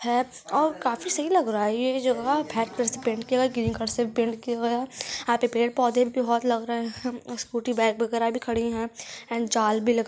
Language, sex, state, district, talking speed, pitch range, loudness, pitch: Hindi, female, Chhattisgarh, Kabirdham, 250 wpm, 230-255 Hz, -26 LUFS, 240 Hz